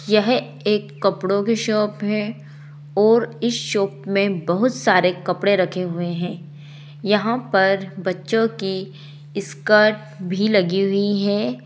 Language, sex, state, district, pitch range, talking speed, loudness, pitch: Hindi, female, Jharkhand, Sahebganj, 175-210 Hz, 130 wpm, -20 LUFS, 195 Hz